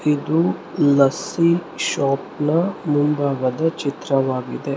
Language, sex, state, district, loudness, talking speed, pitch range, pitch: Kannada, male, Karnataka, Mysore, -20 LUFS, 75 wpm, 140-165 Hz, 145 Hz